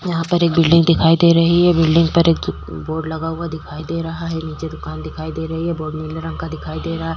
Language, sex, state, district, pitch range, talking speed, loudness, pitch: Hindi, female, Uttar Pradesh, Jyotiba Phule Nagar, 155-165 Hz, 260 wpm, -18 LUFS, 160 Hz